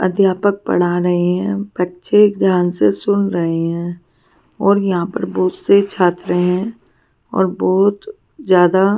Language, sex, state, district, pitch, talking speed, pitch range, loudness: Hindi, female, Punjab, Pathankot, 185 Hz, 135 wpm, 175-200 Hz, -16 LUFS